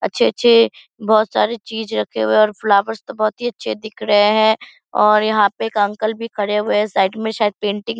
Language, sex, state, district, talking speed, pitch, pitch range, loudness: Hindi, female, Bihar, Purnia, 225 wpm, 215 Hz, 205-225 Hz, -17 LUFS